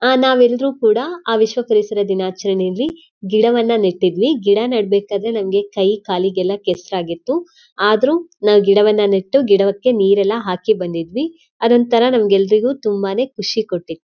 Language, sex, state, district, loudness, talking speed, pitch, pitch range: Kannada, female, Karnataka, Shimoga, -16 LUFS, 115 wpm, 210 Hz, 195-245 Hz